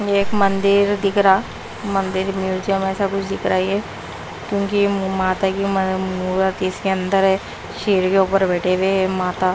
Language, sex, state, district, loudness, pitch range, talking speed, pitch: Hindi, female, Punjab, Pathankot, -19 LUFS, 190-200 Hz, 155 wpm, 195 Hz